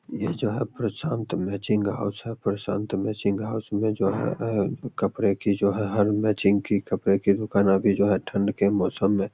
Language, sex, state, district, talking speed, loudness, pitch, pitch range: Hindi, male, Bihar, Begusarai, 205 wpm, -25 LUFS, 100 Hz, 100-105 Hz